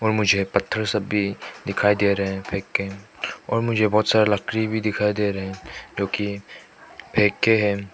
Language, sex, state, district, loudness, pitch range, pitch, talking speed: Hindi, male, Manipur, Imphal West, -22 LUFS, 100-110 Hz, 105 Hz, 180 wpm